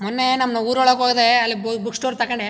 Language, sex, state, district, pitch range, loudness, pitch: Kannada, male, Karnataka, Chamarajanagar, 230-255 Hz, -18 LUFS, 240 Hz